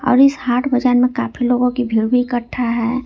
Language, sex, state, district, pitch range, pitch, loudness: Hindi, female, Jharkhand, Ranchi, 245-255 Hz, 250 Hz, -16 LUFS